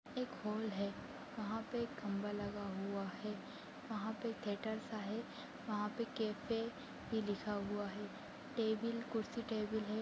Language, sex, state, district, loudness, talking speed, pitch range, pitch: Hindi, female, Maharashtra, Aurangabad, -43 LUFS, 150 wpm, 205-230 Hz, 220 Hz